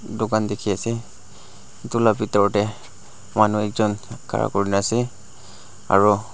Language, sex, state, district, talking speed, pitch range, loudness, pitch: Nagamese, male, Nagaland, Dimapur, 115 wpm, 100-110 Hz, -21 LUFS, 105 Hz